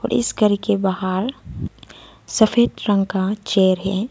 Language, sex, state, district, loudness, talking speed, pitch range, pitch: Hindi, female, Arunachal Pradesh, Lower Dibang Valley, -19 LUFS, 130 wpm, 190-215 Hz, 200 Hz